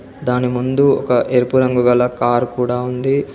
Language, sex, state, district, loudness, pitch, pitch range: Telugu, male, Telangana, Komaram Bheem, -16 LUFS, 125 Hz, 125-130 Hz